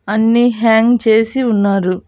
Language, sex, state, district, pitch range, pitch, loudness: Telugu, female, Andhra Pradesh, Annamaya, 205-235 Hz, 225 Hz, -13 LUFS